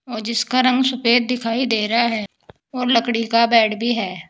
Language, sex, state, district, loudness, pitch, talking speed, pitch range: Hindi, female, Uttar Pradesh, Saharanpur, -18 LUFS, 235 Hz, 195 wpm, 225-250 Hz